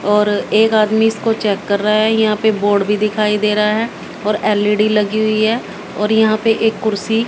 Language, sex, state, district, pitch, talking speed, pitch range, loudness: Hindi, female, Haryana, Jhajjar, 215 Hz, 215 wpm, 210-220 Hz, -15 LUFS